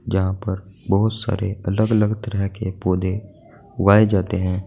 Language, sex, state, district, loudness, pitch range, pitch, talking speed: Hindi, male, Uttar Pradesh, Saharanpur, -21 LUFS, 95-110 Hz, 100 Hz, 155 wpm